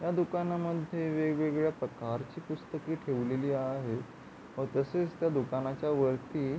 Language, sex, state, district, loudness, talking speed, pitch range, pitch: Marathi, male, Maharashtra, Pune, -33 LUFS, 120 wpm, 130-165 Hz, 150 Hz